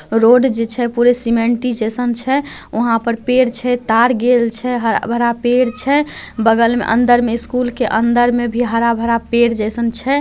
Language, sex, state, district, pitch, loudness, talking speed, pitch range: Maithili, male, Bihar, Samastipur, 240 Hz, -15 LUFS, 175 wpm, 230-245 Hz